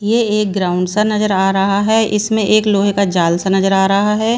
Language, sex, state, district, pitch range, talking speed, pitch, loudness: Hindi, female, Bihar, Patna, 195-215 Hz, 245 wpm, 205 Hz, -14 LUFS